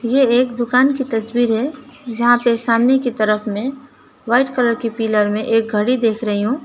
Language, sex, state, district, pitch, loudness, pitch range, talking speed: Hindi, female, West Bengal, Alipurduar, 240 Hz, -17 LUFS, 225-255 Hz, 200 wpm